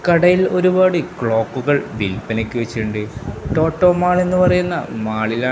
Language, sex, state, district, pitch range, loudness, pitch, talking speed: Malayalam, male, Kerala, Kasaragod, 110-180 Hz, -17 LUFS, 140 Hz, 100 wpm